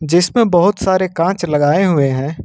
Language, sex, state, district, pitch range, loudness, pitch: Hindi, male, Jharkhand, Ranchi, 150-190 Hz, -14 LUFS, 175 Hz